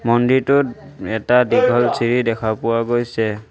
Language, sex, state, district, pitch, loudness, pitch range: Assamese, male, Assam, Sonitpur, 120 Hz, -17 LUFS, 115-125 Hz